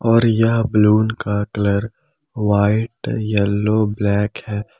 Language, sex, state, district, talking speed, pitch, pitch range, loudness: Hindi, male, Jharkhand, Palamu, 115 wpm, 105 Hz, 105-115 Hz, -18 LUFS